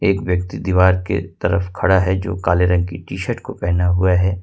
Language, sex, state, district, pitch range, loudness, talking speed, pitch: Hindi, male, Jharkhand, Ranchi, 90-95 Hz, -18 LUFS, 230 wpm, 90 Hz